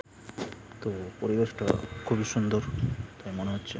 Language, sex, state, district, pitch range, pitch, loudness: Bengali, male, West Bengal, Purulia, 100-115 Hz, 110 Hz, -31 LUFS